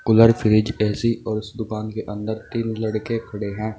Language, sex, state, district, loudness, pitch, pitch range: Hindi, male, Uttar Pradesh, Saharanpur, -22 LUFS, 110 Hz, 110-115 Hz